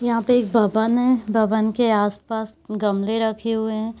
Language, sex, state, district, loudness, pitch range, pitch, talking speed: Hindi, female, Bihar, East Champaran, -21 LUFS, 215-230 Hz, 220 Hz, 180 wpm